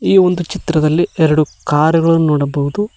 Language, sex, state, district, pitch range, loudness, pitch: Kannada, male, Karnataka, Koppal, 150-175 Hz, -14 LUFS, 160 Hz